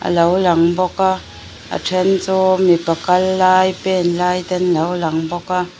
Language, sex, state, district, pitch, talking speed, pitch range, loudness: Mizo, female, Mizoram, Aizawl, 180 Hz, 185 wpm, 170-185 Hz, -16 LUFS